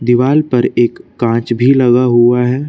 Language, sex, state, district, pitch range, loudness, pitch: Hindi, male, Madhya Pradesh, Bhopal, 120-130 Hz, -12 LUFS, 125 Hz